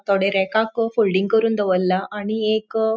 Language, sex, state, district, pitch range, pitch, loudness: Konkani, female, Goa, North and South Goa, 195-220 Hz, 215 Hz, -20 LUFS